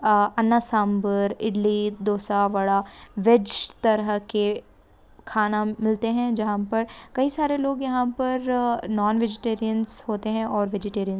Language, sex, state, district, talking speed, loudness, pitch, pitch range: Hindi, female, Andhra Pradesh, Guntur, 135 wpm, -24 LUFS, 215 Hz, 205-235 Hz